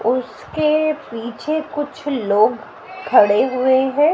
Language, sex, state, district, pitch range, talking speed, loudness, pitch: Hindi, female, Haryana, Jhajjar, 240-305 Hz, 100 wpm, -18 LUFS, 265 Hz